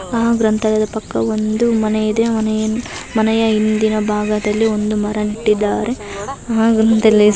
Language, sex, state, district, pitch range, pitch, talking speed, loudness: Kannada, female, Karnataka, Chamarajanagar, 210-225 Hz, 215 Hz, 105 wpm, -16 LUFS